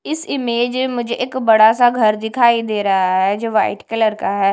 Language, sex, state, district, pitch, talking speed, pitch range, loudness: Hindi, female, Punjab, Kapurthala, 225 Hz, 210 wpm, 215-245 Hz, -16 LUFS